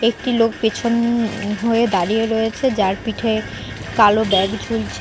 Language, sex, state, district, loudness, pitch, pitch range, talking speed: Bengali, female, West Bengal, Cooch Behar, -18 LUFS, 225 Hz, 205-230 Hz, 130 wpm